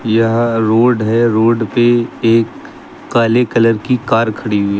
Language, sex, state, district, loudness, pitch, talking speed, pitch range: Hindi, male, Uttar Pradesh, Lucknow, -13 LUFS, 115 Hz, 160 wpm, 110-120 Hz